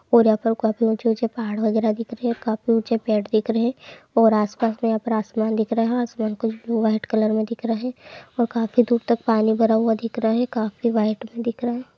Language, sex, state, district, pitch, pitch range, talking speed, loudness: Hindi, female, Uttar Pradesh, Muzaffarnagar, 225 Hz, 220-235 Hz, 235 wpm, -22 LUFS